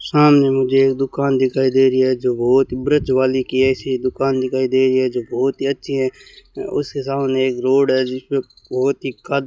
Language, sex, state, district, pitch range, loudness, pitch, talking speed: Hindi, male, Rajasthan, Bikaner, 130-135 Hz, -18 LUFS, 130 Hz, 215 wpm